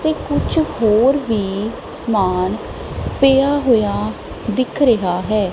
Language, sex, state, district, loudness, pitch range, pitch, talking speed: Punjabi, female, Punjab, Kapurthala, -17 LUFS, 185-265 Hz, 215 Hz, 110 wpm